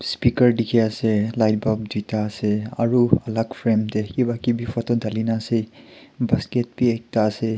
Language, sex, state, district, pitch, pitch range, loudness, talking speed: Nagamese, male, Nagaland, Kohima, 115 Hz, 110-120 Hz, -22 LUFS, 160 wpm